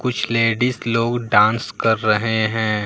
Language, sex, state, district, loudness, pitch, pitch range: Hindi, male, Bihar, Katihar, -18 LUFS, 115 Hz, 110-115 Hz